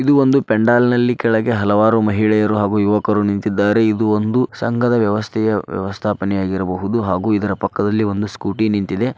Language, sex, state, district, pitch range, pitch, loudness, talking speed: Kannada, male, Karnataka, Dharwad, 100-115 Hz, 105 Hz, -17 LUFS, 130 wpm